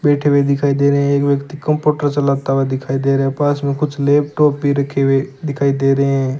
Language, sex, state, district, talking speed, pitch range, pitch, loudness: Hindi, male, Rajasthan, Bikaner, 245 wpm, 135-145 Hz, 140 Hz, -16 LUFS